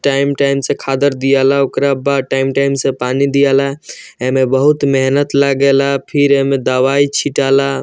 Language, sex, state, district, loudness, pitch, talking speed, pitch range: Bhojpuri, male, Bihar, Muzaffarpur, -13 LUFS, 140 Hz, 175 wpm, 135-140 Hz